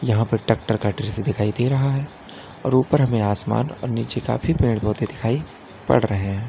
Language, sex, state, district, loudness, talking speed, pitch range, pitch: Hindi, male, Uttar Pradesh, Lalitpur, -21 LUFS, 185 wpm, 105-130 Hz, 115 Hz